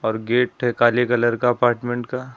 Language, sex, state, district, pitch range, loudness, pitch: Hindi, male, Uttar Pradesh, Lucknow, 120-125 Hz, -20 LUFS, 120 Hz